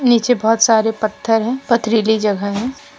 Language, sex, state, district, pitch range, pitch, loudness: Hindi, female, Jharkhand, Deoghar, 220-240 Hz, 225 Hz, -16 LUFS